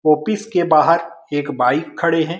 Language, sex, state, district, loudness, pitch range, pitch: Hindi, male, Bihar, Saran, -17 LUFS, 150-170 Hz, 165 Hz